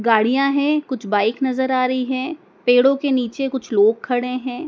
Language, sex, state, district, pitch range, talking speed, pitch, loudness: Hindi, male, Madhya Pradesh, Dhar, 235-270 Hz, 205 wpm, 255 Hz, -19 LUFS